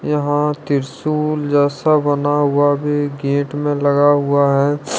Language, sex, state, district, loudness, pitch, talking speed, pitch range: Hindi, male, Jharkhand, Ranchi, -16 LUFS, 145 Hz, 130 wpm, 140-145 Hz